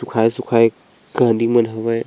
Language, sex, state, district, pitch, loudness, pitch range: Chhattisgarhi, male, Chhattisgarh, Sarguja, 115 Hz, -17 LUFS, 115-120 Hz